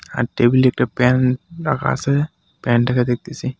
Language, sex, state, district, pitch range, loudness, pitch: Bengali, male, West Bengal, Alipurduar, 120-145 Hz, -18 LUFS, 130 Hz